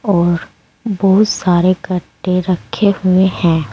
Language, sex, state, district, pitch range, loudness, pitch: Hindi, female, Uttar Pradesh, Saharanpur, 175-195 Hz, -14 LUFS, 185 Hz